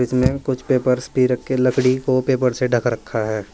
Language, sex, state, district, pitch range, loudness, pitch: Hindi, male, Uttar Pradesh, Saharanpur, 125-130 Hz, -19 LUFS, 125 Hz